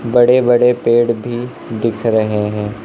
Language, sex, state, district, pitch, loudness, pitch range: Hindi, male, Uttar Pradesh, Lucknow, 115 Hz, -14 LUFS, 110-120 Hz